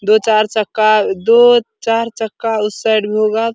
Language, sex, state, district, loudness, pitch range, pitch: Hindi, male, Bihar, Supaul, -14 LUFS, 215-225 Hz, 220 Hz